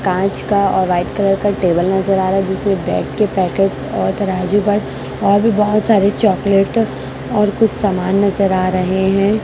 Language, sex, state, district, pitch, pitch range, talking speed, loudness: Hindi, female, Chhattisgarh, Raipur, 195 Hz, 185-205 Hz, 190 wpm, -15 LUFS